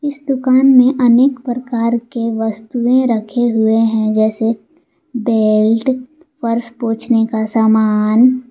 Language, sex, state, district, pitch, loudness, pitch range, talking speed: Hindi, female, Jharkhand, Palamu, 235 Hz, -14 LUFS, 225-255 Hz, 115 wpm